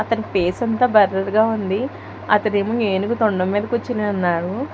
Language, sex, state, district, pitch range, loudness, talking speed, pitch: Telugu, female, Telangana, Hyderabad, 195-225 Hz, -19 LUFS, 150 wpm, 210 Hz